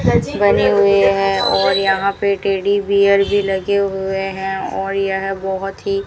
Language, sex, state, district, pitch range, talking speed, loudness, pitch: Hindi, female, Rajasthan, Bikaner, 195-200 Hz, 170 wpm, -16 LUFS, 195 Hz